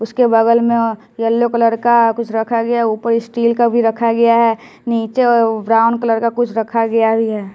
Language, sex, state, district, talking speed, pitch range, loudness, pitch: Hindi, male, Bihar, West Champaran, 220 wpm, 225-235 Hz, -15 LUFS, 230 Hz